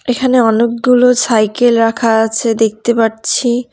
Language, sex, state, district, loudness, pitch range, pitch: Bengali, female, West Bengal, Cooch Behar, -12 LUFS, 225-245 Hz, 235 Hz